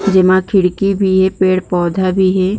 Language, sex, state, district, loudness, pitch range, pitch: Chhattisgarhi, female, Chhattisgarh, Jashpur, -13 LUFS, 185-190 Hz, 190 Hz